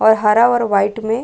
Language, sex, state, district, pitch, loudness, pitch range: Hindi, female, Chhattisgarh, Bilaspur, 220 Hz, -14 LUFS, 210-230 Hz